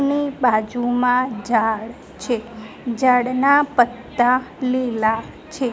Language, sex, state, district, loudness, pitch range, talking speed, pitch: Gujarati, female, Gujarat, Gandhinagar, -19 LUFS, 235-255 Hz, 85 wpm, 245 Hz